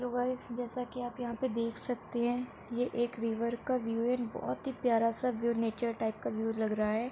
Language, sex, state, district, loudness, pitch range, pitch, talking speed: Hindi, female, Uttar Pradesh, Etah, -34 LUFS, 230-245 Hz, 235 Hz, 245 wpm